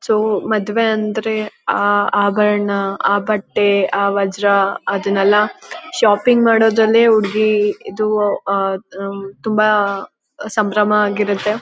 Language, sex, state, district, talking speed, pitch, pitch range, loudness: Kannada, female, Karnataka, Chamarajanagar, 90 wpm, 210 Hz, 200-215 Hz, -16 LUFS